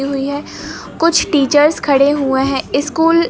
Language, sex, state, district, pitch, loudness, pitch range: Hindi, male, Madhya Pradesh, Bhopal, 285 Hz, -14 LUFS, 275-315 Hz